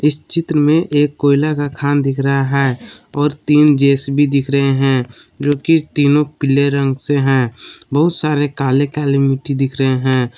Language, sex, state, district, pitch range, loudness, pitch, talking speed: Hindi, male, Jharkhand, Palamu, 135-145 Hz, -15 LUFS, 140 Hz, 180 wpm